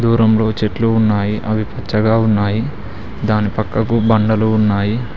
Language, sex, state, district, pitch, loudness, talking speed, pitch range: Telugu, male, Telangana, Mahabubabad, 110 Hz, -16 LUFS, 115 wpm, 105-110 Hz